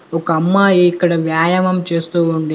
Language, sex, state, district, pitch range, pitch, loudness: Telugu, male, Telangana, Komaram Bheem, 165-180 Hz, 170 Hz, -14 LUFS